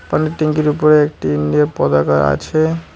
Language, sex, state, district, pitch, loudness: Bengali, male, West Bengal, Cooch Behar, 150 Hz, -15 LUFS